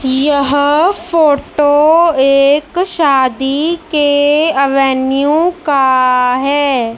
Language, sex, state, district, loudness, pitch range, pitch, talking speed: Hindi, female, Madhya Pradesh, Dhar, -11 LUFS, 270-310 Hz, 285 Hz, 70 wpm